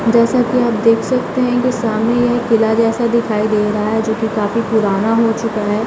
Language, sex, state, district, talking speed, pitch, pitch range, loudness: Hindi, female, Bihar, Gaya, 235 wpm, 225 Hz, 215-235 Hz, -15 LUFS